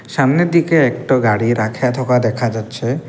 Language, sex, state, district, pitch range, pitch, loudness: Bengali, male, Assam, Kamrup Metropolitan, 120-135 Hz, 125 Hz, -16 LUFS